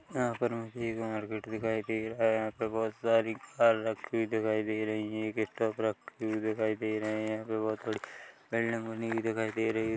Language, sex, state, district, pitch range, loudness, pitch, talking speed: Hindi, male, Chhattisgarh, Rajnandgaon, 110-115 Hz, -33 LUFS, 110 Hz, 180 wpm